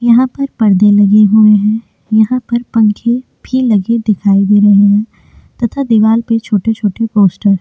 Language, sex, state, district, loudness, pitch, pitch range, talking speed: Hindi, female, Chhattisgarh, Korba, -11 LUFS, 215 Hz, 205-235 Hz, 175 wpm